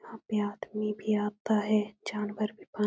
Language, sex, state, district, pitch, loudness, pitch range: Hindi, female, Uttar Pradesh, Etah, 210 Hz, -31 LUFS, 210-215 Hz